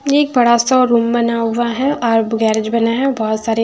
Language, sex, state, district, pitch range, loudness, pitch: Hindi, female, Punjab, Fazilka, 225-250 Hz, -15 LUFS, 235 Hz